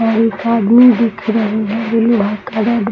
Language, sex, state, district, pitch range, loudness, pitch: Hindi, male, Bihar, East Champaran, 215-230 Hz, -13 LUFS, 225 Hz